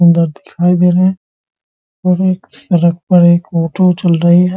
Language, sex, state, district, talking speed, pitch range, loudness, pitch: Hindi, male, Bihar, Muzaffarpur, 195 wpm, 170-185 Hz, -12 LUFS, 175 Hz